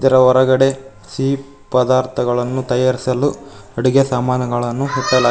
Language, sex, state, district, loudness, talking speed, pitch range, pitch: Kannada, male, Karnataka, Koppal, -16 LUFS, 90 wpm, 125-135 Hz, 130 Hz